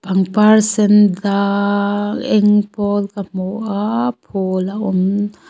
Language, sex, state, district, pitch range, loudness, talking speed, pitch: Mizo, female, Mizoram, Aizawl, 195-210 Hz, -16 LUFS, 110 wpm, 205 Hz